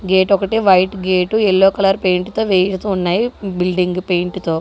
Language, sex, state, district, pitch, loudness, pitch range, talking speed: Telugu, female, Andhra Pradesh, Guntur, 190 Hz, -15 LUFS, 180-195 Hz, 155 wpm